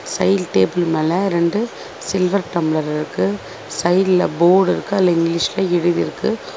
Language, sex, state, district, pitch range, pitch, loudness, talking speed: Tamil, female, Tamil Nadu, Chennai, 165-185 Hz, 175 Hz, -18 LUFS, 110 wpm